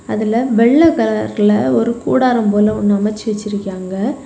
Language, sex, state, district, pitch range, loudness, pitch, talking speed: Tamil, female, Tamil Nadu, Kanyakumari, 210-235 Hz, -15 LUFS, 215 Hz, 125 wpm